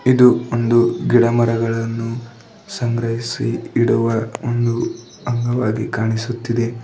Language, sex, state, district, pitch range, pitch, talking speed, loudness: Kannada, male, Karnataka, Bidar, 115-120 Hz, 115 Hz, 70 wpm, -18 LUFS